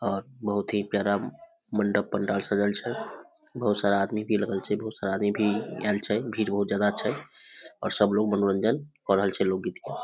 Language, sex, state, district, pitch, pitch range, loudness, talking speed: Maithili, male, Bihar, Samastipur, 105 Hz, 100-105 Hz, -27 LUFS, 195 wpm